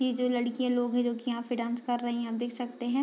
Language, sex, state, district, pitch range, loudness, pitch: Hindi, female, Bihar, Madhepura, 240-250 Hz, -31 LUFS, 245 Hz